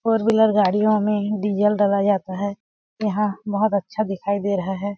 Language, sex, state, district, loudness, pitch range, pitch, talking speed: Hindi, female, Chhattisgarh, Balrampur, -21 LUFS, 200-215 Hz, 205 Hz, 195 wpm